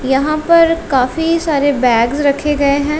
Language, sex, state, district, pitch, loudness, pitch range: Hindi, female, Punjab, Kapurthala, 290 Hz, -13 LUFS, 270-320 Hz